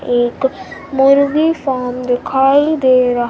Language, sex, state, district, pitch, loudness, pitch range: Hindi, female, Bihar, Kaimur, 265 Hz, -14 LUFS, 250-280 Hz